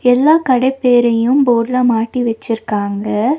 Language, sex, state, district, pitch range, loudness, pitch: Tamil, female, Tamil Nadu, Nilgiris, 225-255 Hz, -14 LUFS, 245 Hz